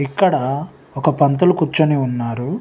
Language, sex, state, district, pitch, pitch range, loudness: Telugu, male, Telangana, Nalgonda, 145 Hz, 135-160 Hz, -17 LUFS